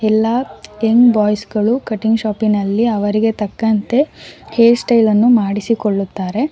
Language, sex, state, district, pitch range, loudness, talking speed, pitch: Kannada, female, Karnataka, Shimoga, 210-235 Hz, -15 LUFS, 110 wpm, 220 Hz